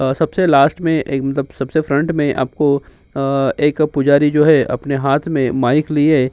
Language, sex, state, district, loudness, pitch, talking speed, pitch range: Hindi, male, Uttar Pradesh, Jyotiba Phule Nagar, -16 LUFS, 145 Hz, 200 wpm, 135-155 Hz